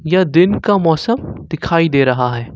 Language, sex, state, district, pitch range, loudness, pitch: Hindi, male, Jharkhand, Ranchi, 135-185 Hz, -14 LUFS, 165 Hz